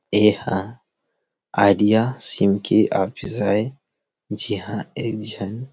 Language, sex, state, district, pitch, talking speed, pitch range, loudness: Chhattisgarhi, male, Chhattisgarh, Rajnandgaon, 105 Hz, 95 wpm, 100-115 Hz, -20 LUFS